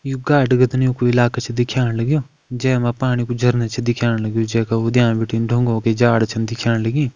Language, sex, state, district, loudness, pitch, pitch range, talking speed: Kumaoni, male, Uttarakhand, Uttarkashi, -18 LUFS, 120 Hz, 115-125 Hz, 200 wpm